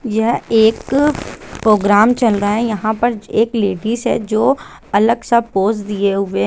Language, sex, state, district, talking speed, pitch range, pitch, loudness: Hindi, female, Bihar, Sitamarhi, 165 wpm, 205-235 Hz, 220 Hz, -15 LUFS